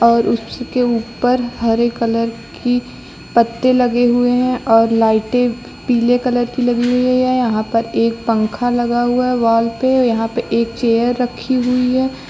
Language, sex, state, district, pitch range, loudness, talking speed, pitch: Hindi, female, Uttar Pradesh, Lucknow, 230-250 Hz, -16 LUFS, 170 wpm, 240 Hz